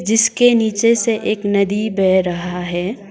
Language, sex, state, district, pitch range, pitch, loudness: Hindi, female, Sikkim, Gangtok, 190-225 Hz, 205 Hz, -16 LUFS